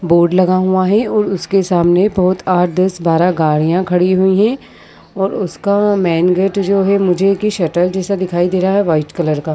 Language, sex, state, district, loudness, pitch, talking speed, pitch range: Hindi, female, Uttar Pradesh, Jyotiba Phule Nagar, -14 LUFS, 185 Hz, 205 wpm, 175-195 Hz